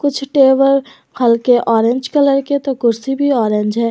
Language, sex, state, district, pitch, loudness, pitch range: Hindi, female, Jharkhand, Garhwa, 265 Hz, -14 LUFS, 235-275 Hz